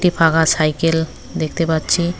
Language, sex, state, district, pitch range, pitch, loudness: Bengali, female, West Bengal, Cooch Behar, 160-170 Hz, 165 Hz, -17 LUFS